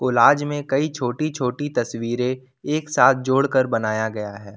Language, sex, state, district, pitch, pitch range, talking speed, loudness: Hindi, male, Jharkhand, Ranchi, 130 Hz, 115-145 Hz, 155 wpm, -21 LUFS